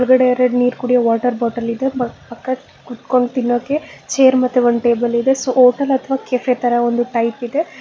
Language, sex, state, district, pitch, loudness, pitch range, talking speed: Kannada, female, Karnataka, Bangalore, 250 Hz, -16 LUFS, 240-260 Hz, 185 wpm